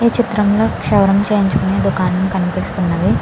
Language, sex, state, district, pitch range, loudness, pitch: Telugu, female, Andhra Pradesh, Chittoor, 185-210 Hz, -15 LUFS, 195 Hz